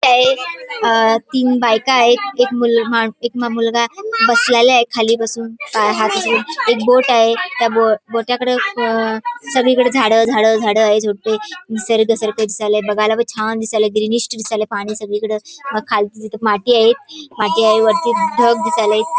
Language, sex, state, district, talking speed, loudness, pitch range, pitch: Marathi, female, Goa, North and South Goa, 150 wpm, -15 LUFS, 220-245 Hz, 230 Hz